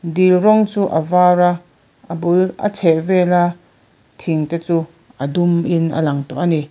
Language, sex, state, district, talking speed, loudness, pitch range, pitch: Mizo, female, Mizoram, Aizawl, 180 wpm, -16 LUFS, 160-180 Hz, 175 Hz